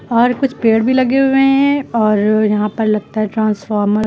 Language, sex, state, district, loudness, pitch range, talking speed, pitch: Hindi, female, Uttar Pradesh, Lucknow, -14 LUFS, 215-260 Hz, 205 wpm, 225 Hz